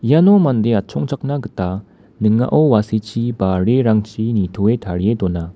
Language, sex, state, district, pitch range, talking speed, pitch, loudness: Garo, male, Meghalaya, West Garo Hills, 100-125 Hz, 120 wpm, 110 Hz, -17 LUFS